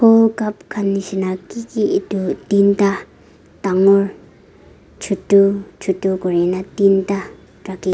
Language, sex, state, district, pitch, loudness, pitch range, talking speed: Nagamese, female, Nagaland, Dimapur, 195 Hz, -17 LUFS, 190-200 Hz, 100 wpm